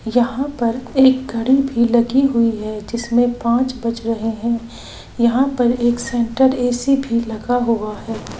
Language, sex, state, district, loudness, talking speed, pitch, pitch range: Hindi, female, Bihar, Saran, -18 LUFS, 155 wpm, 235 Hz, 230-255 Hz